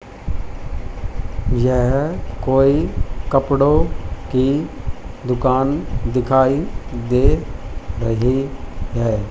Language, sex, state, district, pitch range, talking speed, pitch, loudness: Hindi, male, Haryana, Jhajjar, 100-135 Hz, 60 wpm, 125 Hz, -19 LUFS